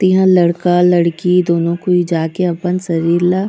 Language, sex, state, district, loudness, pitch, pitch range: Chhattisgarhi, female, Chhattisgarh, Raigarh, -14 LUFS, 175 Hz, 170-180 Hz